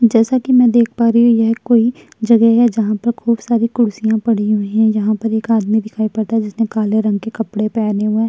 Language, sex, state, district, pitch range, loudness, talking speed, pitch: Hindi, female, Uttar Pradesh, Jyotiba Phule Nagar, 215-235 Hz, -15 LUFS, 245 wpm, 225 Hz